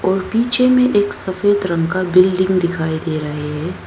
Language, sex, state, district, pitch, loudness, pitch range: Hindi, female, Arunachal Pradesh, Papum Pare, 185 Hz, -16 LUFS, 165-205 Hz